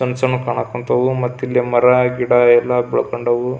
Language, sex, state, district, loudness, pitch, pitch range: Kannada, male, Karnataka, Belgaum, -16 LUFS, 125 Hz, 120-125 Hz